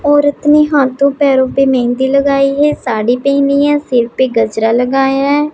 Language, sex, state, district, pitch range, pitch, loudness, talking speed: Hindi, female, Punjab, Pathankot, 255-290 Hz, 275 Hz, -12 LUFS, 165 wpm